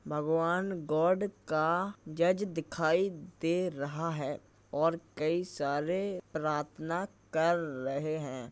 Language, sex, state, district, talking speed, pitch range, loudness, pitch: Hindi, male, Uttar Pradesh, Jalaun, 105 wpm, 150-175 Hz, -32 LUFS, 160 Hz